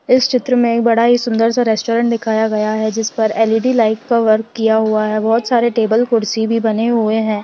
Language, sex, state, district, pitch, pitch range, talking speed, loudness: Hindi, female, Bihar, Madhepura, 225 Hz, 220-235 Hz, 225 wpm, -15 LUFS